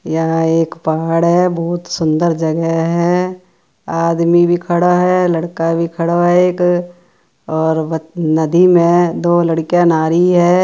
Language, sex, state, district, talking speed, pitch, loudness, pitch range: Marwari, female, Rajasthan, Churu, 140 wpm, 170 Hz, -14 LUFS, 165-175 Hz